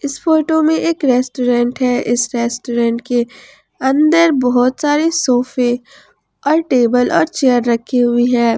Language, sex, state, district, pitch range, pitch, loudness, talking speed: Hindi, female, Jharkhand, Ranchi, 240-295 Hz, 250 Hz, -15 LUFS, 140 wpm